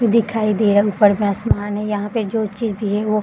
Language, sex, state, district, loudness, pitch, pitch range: Hindi, female, Bihar, Sitamarhi, -18 LUFS, 210 Hz, 205-225 Hz